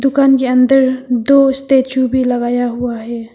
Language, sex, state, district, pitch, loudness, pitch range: Hindi, female, Arunachal Pradesh, Papum Pare, 260 Hz, -13 LUFS, 245-270 Hz